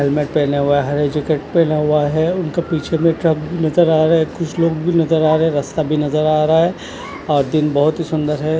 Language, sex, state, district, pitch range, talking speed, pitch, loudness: Hindi, male, Chandigarh, Chandigarh, 150-165 Hz, 245 wpm, 155 Hz, -16 LUFS